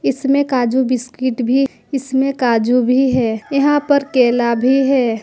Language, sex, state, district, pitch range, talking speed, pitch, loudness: Hindi, female, Jharkhand, Ranchi, 245-275 Hz, 150 wpm, 255 Hz, -15 LUFS